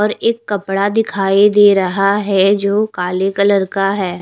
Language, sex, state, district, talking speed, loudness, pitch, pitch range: Hindi, female, Haryana, Rohtak, 170 wpm, -14 LUFS, 200 Hz, 195-205 Hz